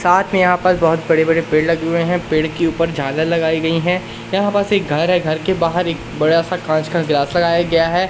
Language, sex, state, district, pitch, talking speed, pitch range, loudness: Hindi, male, Madhya Pradesh, Katni, 165 Hz, 245 wpm, 160-180 Hz, -16 LUFS